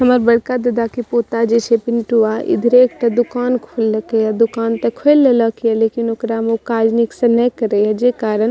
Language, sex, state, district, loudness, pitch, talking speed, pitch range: Maithili, female, Bihar, Madhepura, -15 LUFS, 230 Hz, 175 wpm, 225-245 Hz